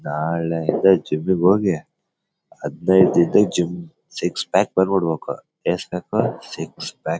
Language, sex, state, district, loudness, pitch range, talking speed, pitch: Kannada, male, Karnataka, Bellary, -20 LUFS, 85-95 Hz, 125 wpm, 90 Hz